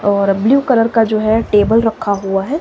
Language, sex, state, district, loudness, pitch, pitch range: Hindi, female, Himachal Pradesh, Shimla, -14 LUFS, 220 Hz, 200-230 Hz